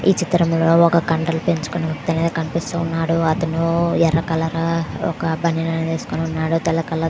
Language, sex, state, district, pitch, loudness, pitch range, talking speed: Telugu, female, Andhra Pradesh, Visakhapatnam, 165 Hz, -19 LUFS, 165-170 Hz, 145 wpm